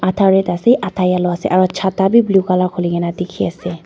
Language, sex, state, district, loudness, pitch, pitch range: Nagamese, female, Nagaland, Dimapur, -15 LUFS, 185 Hz, 180-195 Hz